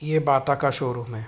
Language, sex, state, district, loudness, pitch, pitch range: Hindi, male, Uttar Pradesh, Hamirpur, -23 LUFS, 135 Hz, 120-140 Hz